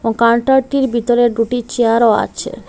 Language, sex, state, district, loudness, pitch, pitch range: Bengali, female, Assam, Hailakandi, -14 LUFS, 235 Hz, 230-245 Hz